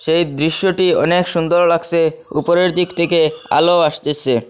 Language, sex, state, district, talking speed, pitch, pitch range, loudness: Bengali, male, Assam, Hailakandi, 135 wpm, 165 Hz, 155-175 Hz, -15 LUFS